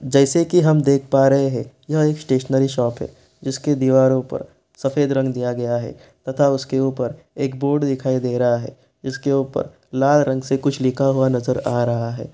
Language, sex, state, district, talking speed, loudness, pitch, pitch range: Hindi, male, Bihar, East Champaran, 200 wpm, -19 LUFS, 135 Hz, 130-140 Hz